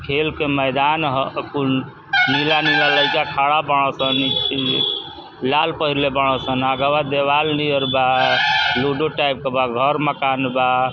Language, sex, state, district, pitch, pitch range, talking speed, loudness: Bhojpuri, male, Uttar Pradesh, Ghazipur, 140 Hz, 135-150 Hz, 155 wpm, -18 LUFS